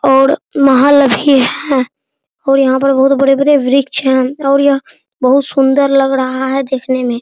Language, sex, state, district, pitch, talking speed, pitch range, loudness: Hindi, male, Bihar, Araria, 270 Hz, 185 wpm, 260-275 Hz, -11 LUFS